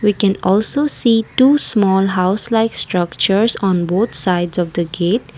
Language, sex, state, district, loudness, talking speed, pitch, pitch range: English, female, Assam, Kamrup Metropolitan, -15 LUFS, 165 wpm, 195 Hz, 180-225 Hz